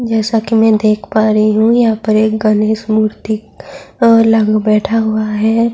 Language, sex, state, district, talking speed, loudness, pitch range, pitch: Urdu, female, Bihar, Saharsa, 145 wpm, -12 LUFS, 215-225 Hz, 220 Hz